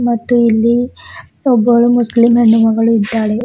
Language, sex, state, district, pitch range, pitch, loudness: Kannada, female, Karnataka, Bidar, 225-240 Hz, 235 Hz, -12 LUFS